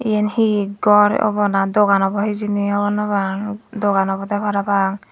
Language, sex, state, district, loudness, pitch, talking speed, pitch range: Chakma, female, Tripura, Dhalai, -18 LUFS, 205 Hz, 165 wpm, 200-210 Hz